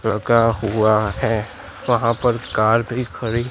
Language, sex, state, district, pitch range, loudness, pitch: Hindi, male, Gujarat, Gandhinagar, 110-120 Hz, -19 LUFS, 115 Hz